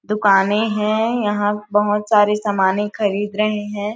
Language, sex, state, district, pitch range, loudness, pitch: Hindi, female, Chhattisgarh, Sarguja, 205-210 Hz, -18 LUFS, 210 Hz